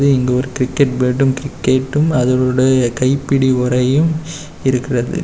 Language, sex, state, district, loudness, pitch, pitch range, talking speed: Tamil, male, Tamil Nadu, Kanyakumari, -15 LUFS, 130 Hz, 125-140 Hz, 105 wpm